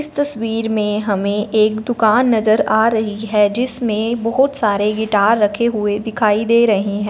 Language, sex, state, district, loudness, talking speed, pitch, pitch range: Hindi, female, Punjab, Fazilka, -16 LUFS, 170 wpm, 220 Hz, 210-230 Hz